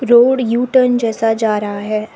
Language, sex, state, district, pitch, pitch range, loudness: Hindi, female, Arunachal Pradesh, Lower Dibang Valley, 230 Hz, 215-245 Hz, -14 LUFS